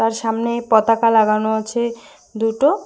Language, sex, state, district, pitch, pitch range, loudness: Bengali, female, West Bengal, Cooch Behar, 225 Hz, 220-235 Hz, -17 LUFS